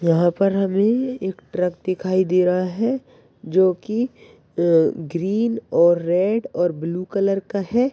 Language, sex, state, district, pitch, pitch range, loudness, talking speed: Hindi, male, Maharashtra, Solapur, 185 Hz, 175-210 Hz, -20 LUFS, 150 wpm